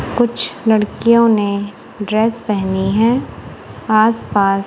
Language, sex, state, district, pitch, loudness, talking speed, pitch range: Hindi, female, Punjab, Kapurthala, 215 Hz, -15 LUFS, 90 wpm, 200-230 Hz